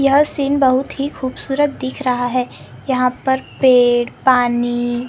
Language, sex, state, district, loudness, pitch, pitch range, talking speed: Hindi, female, Maharashtra, Gondia, -17 LUFS, 260 Hz, 245-275 Hz, 140 wpm